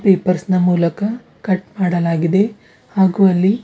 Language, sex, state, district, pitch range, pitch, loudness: Kannada, female, Karnataka, Bidar, 180-200 Hz, 190 Hz, -16 LUFS